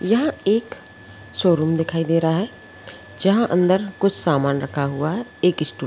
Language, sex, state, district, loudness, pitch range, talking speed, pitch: Hindi, female, Bihar, Araria, -20 LUFS, 140-195 Hz, 165 wpm, 165 Hz